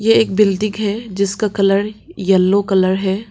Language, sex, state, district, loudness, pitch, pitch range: Hindi, female, Arunachal Pradesh, Papum Pare, -16 LUFS, 200 Hz, 195-210 Hz